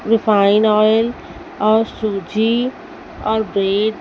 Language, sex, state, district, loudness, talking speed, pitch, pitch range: Hindi, female, Chhattisgarh, Raipur, -16 LUFS, 105 wpm, 220 Hz, 210-235 Hz